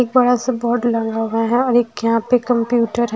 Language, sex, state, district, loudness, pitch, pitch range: Hindi, female, Haryana, Charkhi Dadri, -17 LUFS, 235 Hz, 230-245 Hz